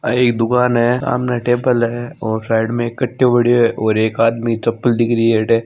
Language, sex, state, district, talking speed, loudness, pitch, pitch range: Marwari, male, Rajasthan, Nagaur, 235 wpm, -16 LUFS, 120 Hz, 115-120 Hz